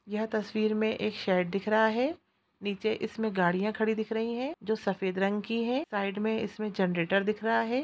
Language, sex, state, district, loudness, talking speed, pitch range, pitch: Hindi, female, Chhattisgarh, Raigarh, -30 LUFS, 215 wpm, 200-225 Hz, 215 Hz